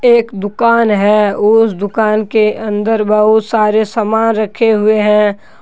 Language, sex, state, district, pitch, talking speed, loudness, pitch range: Hindi, male, Jharkhand, Deoghar, 215 Hz, 140 wpm, -12 LUFS, 210-225 Hz